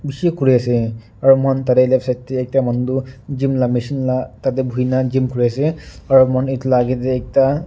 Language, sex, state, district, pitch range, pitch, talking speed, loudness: Nagamese, male, Nagaland, Dimapur, 125-135 Hz, 130 Hz, 195 wpm, -17 LUFS